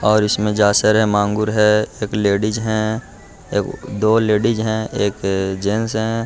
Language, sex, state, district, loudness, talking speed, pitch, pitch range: Hindi, male, Bihar, Gaya, -18 LUFS, 125 wpm, 105 Hz, 105-110 Hz